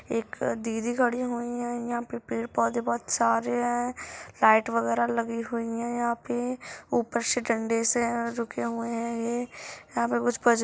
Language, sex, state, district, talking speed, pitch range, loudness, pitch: Hindi, female, Bihar, Madhepura, 180 wpm, 230-240 Hz, -28 LUFS, 235 Hz